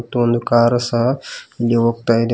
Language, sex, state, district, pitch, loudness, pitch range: Kannada, male, Karnataka, Koppal, 120 Hz, -17 LUFS, 115-120 Hz